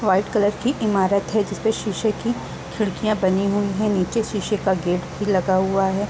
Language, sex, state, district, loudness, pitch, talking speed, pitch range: Hindi, female, Chhattisgarh, Bilaspur, -21 LUFS, 200 Hz, 195 wpm, 190-215 Hz